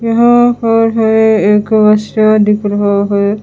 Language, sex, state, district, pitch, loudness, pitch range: Hindi, female, Haryana, Charkhi Dadri, 215 Hz, -10 LUFS, 205-225 Hz